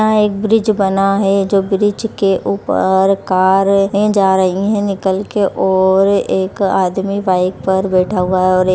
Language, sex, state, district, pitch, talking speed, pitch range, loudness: Hindi, female, Uttar Pradesh, Varanasi, 195 Hz, 180 wpm, 190-200 Hz, -14 LUFS